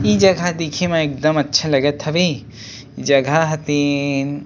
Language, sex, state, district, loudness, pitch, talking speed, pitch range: Chhattisgarhi, male, Chhattisgarh, Sukma, -17 LUFS, 145 Hz, 150 wpm, 140-160 Hz